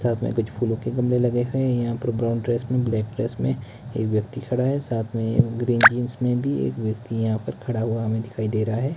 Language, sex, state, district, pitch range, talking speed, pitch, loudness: Hindi, male, Himachal Pradesh, Shimla, 115-125 Hz, 245 wpm, 120 Hz, -23 LUFS